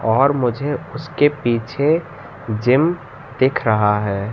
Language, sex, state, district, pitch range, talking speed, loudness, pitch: Hindi, male, Madhya Pradesh, Katni, 110-145 Hz, 110 wpm, -18 LUFS, 130 Hz